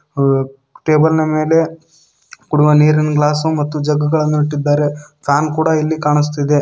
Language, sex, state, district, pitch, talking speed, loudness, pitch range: Kannada, male, Karnataka, Koppal, 150 Hz, 120 wpm, -15 LUFS, 150-155 Hz